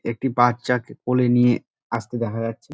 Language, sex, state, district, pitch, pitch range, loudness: Bengali, male, West Bengal, Dakshin Dinajpur, 120 Hz, 115-125 Hz, -22 LUFS